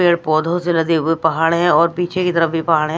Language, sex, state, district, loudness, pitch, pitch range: Hindi, female, Odisha, Malkangiri, -16 LUFS, 165 Hz, 160-175 Hz